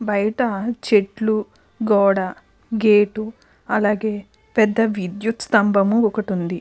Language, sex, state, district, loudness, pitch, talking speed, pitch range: Telugu, female, Andhra Pradesh, Krishna, -19 LUFS, 210 Hz, 90 wpm, 200-220 Hz